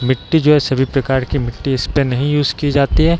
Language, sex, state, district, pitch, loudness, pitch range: Hindi, male, Bihar, East Champaran, 135 Hz, -16 LUFS, 130-145 Hz